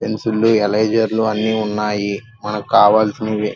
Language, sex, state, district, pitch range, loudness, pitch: Telugu, male, Andhra Pradesh, Krishna, 105-110 Hz, -17 LUFS, 110 Hz